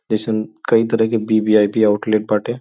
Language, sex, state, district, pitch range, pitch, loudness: Bhojpuri, male, Uttar Pradesh, Gorakhpur, 110-115 Hz, 110 Hz, -17 LUFS